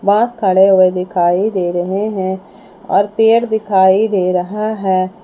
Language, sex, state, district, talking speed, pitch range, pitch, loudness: Hindi, female, Jharkhand, Palamu, 150 wpm, 185-215 Hz, 190 Hz, -14 LUFS